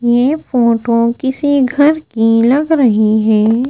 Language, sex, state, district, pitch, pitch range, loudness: Hindi, female, Madhya Pradesh, Bhopal, 240 Hz, 230-285 Hz, -12 LUFS